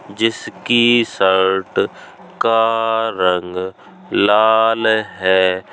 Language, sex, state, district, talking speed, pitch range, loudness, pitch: Hindi, male, Uttar Pradesh, Jalaun, 65 wpm, 95-115 Hz, -16 LUFS, 110 Hz